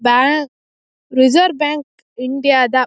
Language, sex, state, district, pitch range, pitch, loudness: Kannada, female, Karnataka, Shimoga, 255-295 Hz, 270 Hz, -15 LUFS